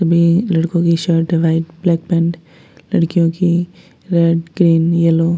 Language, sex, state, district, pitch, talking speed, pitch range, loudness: Hindi, female, Bihar, West Champaran, 170 Hz, 155 wpm, 165-170 Hz, -15 LUFS